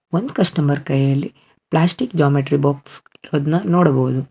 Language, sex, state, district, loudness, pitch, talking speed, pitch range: Kannada, male, Karnataka, Bangalore, -18 LUFS, 145 Hz, 110 wpm, 135-165 Hz